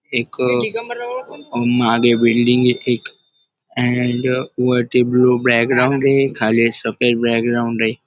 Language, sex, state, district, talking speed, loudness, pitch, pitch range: Marathi, male, Maharashtra, Dhule, 110 wpm, -16 LUFS, 125 Hz, 120-125 Hz